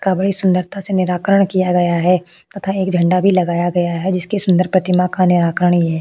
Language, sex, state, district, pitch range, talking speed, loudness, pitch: Hindi, female, Maharashtra, Chandrapur, 175-190 Hz, 200 wpm, -16 LUFS, 180 Hz